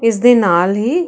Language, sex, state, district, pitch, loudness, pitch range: Punjabi, female, Karnataka, Bangalore, 230 Hz, -12 LUFS, 200-245 Hz